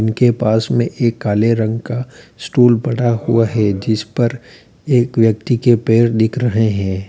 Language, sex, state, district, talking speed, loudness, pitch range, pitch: Hindi, male, Uttar Pradesh, Lalitpur, 170 wpm, -15 LUFS, 110-120 Hz, 115 Hz